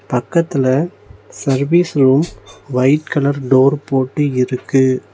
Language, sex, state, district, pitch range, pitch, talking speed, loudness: Tamil, male, Tamil Nadu, Nilgiris, 130-150 Hz, 135 Hz, 95 wpm, -15 LUFS